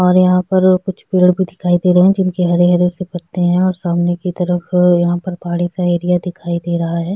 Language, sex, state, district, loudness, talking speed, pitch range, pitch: Hindi, female, Chhattisgarh, Sukma, -15 LUFS, 225 wpm, 175-185 Hz, 180 Hz